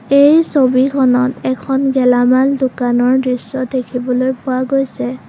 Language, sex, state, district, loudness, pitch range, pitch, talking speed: Assamese, female, Assam, Kamrup Metropolitan, -14 LUFS, 250-270 Hz, 260 Hz, 100 wpm